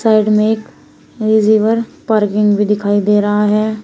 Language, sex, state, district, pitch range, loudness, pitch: Hindi, female, Uttar Pradesh, Shamli, 210-220 Hz, -14 LUFS, 215 Hz